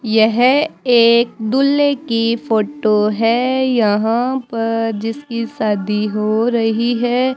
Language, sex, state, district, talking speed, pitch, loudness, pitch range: Hindi, male, Rajasthan, Bikaner, 105 wpm, 230 Hz, -16 LUFS, 220-250 Hz